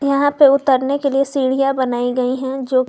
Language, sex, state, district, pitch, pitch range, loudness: Hindi, female, Jharkhand, Garhwa, 270 Hz, 260-275 Hz, -16 LUFS